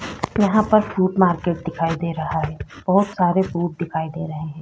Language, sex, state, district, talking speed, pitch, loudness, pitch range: Hindi, female, Uttar Pradesh, Jyotiba Phule Nagar, 195 wpm, 175 Hz, -21 LUFS, 160-190 Hz